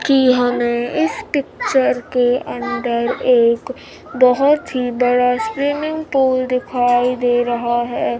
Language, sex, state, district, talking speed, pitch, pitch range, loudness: Hindi, female, Bihar, Kaimur, 115 wpm, 250 Hz, 245-270 Hz, -17 LUFS